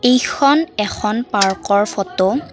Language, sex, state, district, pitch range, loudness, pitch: Assamese, female, Assam, Kamrup Metropolitan, 200-250 Hz, -16 LUFS, 210 Hz